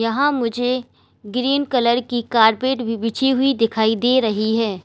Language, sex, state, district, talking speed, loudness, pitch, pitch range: Hindi, female, Uttar Pradesh, Lalitpur, 160 wpm, -19 LUFS, 240 Hz, 225-260 Hz